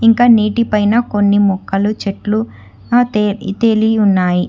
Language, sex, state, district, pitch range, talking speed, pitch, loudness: Telugu, female, Telangana, Hyderabad, 200-225 Hz, 105 wpm, 210 Hz, -14 LUFS